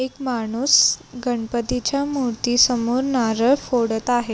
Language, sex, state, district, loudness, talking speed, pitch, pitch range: Marathi, female, Maharashtra, Sindhudurg, -20 LUFS, 110 wpm, 245 Hz, 235-255 Hz